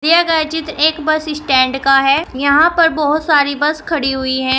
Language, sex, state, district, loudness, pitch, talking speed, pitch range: Hindi, female, Uttar Pradesh, Shamli, -14 LUFS, 300 Hz, 210 wpm, 275-315 Hz